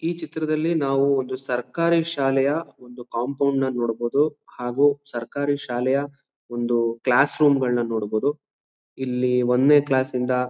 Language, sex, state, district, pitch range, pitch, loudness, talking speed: Kannada, male, Karnataka, Mysore, 125-145 Hz, 135 Hz, -22 LUFS, 110 wpm